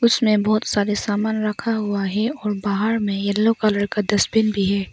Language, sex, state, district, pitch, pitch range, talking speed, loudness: Hindi, female, Arunachal Pradesh, Longding, 210 Hz, 205-220 Hz, 195 wpm, -20 LUFS